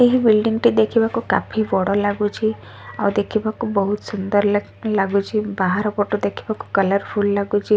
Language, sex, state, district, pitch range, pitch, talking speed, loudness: Odia, female, Odisha, Sambalpur, 200-220 Hz, 210 Hz, 170 wpm, -20 LUFS